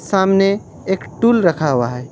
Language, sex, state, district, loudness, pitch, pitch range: Hindi, male, West Bengal, Alipurduar, -16 LUFS, 190 Hz, 145-195 Hz